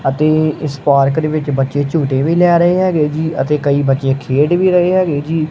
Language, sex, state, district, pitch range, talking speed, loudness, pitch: Punjabi, male, Punjab, Kapurthala, 140-165 Hz, 205 wpm, -14 LUFS, 150 Hz